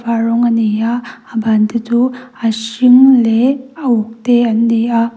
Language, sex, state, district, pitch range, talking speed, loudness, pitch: Mizo, female, Mizoram, Aizawl, 225-250 Hz, 210 wpm, -13 LUFS, 235 Hz